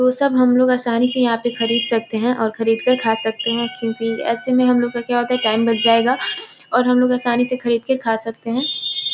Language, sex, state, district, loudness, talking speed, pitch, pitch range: Hindi, female, Bihar, Gopalganj, -18 LUFS, 255 wpm, 240 Hz, 230-250 Hz